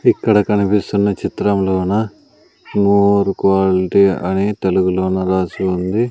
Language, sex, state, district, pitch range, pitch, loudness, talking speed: Telugu, male, Andhra Pradesh, Sri Satya Sai, 95-100 Hz, 100 Hz, -16 LUFS, 100 wpm